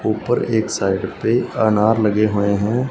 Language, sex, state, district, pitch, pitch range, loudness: Hindi, male, Punjab, Fazilka, 110 Hz, 100-110 Hz, -18 LUFS